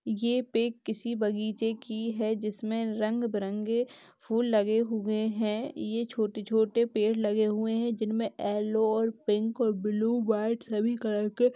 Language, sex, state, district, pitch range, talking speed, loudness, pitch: Hindi, female, Chhattisgarh, Kabirdham, 215-230 Hz, 155 wpm, -29 LUFS, 220 Hz